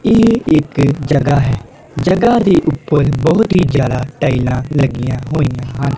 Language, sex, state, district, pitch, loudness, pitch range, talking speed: Punjabi, male, Punjab, Kapurthala, 145 Hz, -14 LUFS, 130-160 Hz, 140 wpm